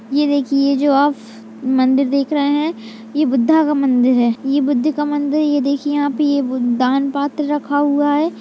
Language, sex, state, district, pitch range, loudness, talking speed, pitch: Hindi, female, Uttar Pradesh, Budaun, 260-290 Hz, -16 LUFS, 205 wpm, 280 Hz